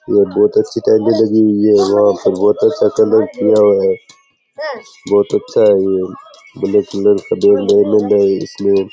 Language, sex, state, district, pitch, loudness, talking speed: Rajasthani, male, Rajasthan, Churu, 110 Hz, -13 LUFS, 140 wpm